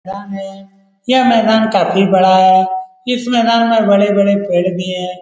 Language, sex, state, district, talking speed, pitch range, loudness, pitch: Hindi, male, Bihar, Lakhisarai, 205 wpm, 185-230 Hz, -12 LUFS, 195 Hz